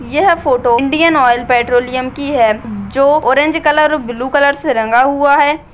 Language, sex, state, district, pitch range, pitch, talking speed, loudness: Hindi, female, Uttarakhand, Uttarkashi, 245-290 Hz, 270 Hz, 155 wpm, -12 LUFS